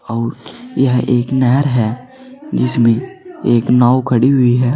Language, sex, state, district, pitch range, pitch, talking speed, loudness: Hindi, male, Uttar Pradesh, Saharanpur, 120-140 Hz, 125 Hz, 140 wpm, -14 LUFS